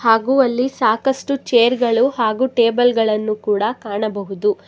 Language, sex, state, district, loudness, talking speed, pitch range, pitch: Kannada, female, Karnataka, Bangalore, -17 LUFS, 130 wpm, 215-255 Hz, 230 Hz